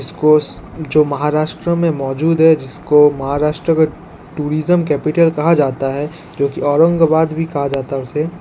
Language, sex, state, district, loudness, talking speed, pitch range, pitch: Hindi, male, Jharkhand, Ranchi, -15 LUFS, 150 wpm, 145-165 Hz, 155 Hz